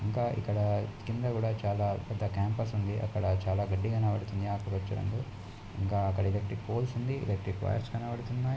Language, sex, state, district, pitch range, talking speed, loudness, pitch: Telugu, male, Andhra Pradesh, Chittoor, 100-115 Hz, 145 wpm, -33 LUFS, 105 Hz